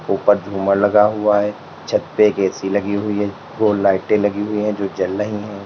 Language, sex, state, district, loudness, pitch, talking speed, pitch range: Hindi, male, Uttar Pradesh, Lalitpur, -18 LUFS, 105 Hz, 210 wpm, 100-105 Hz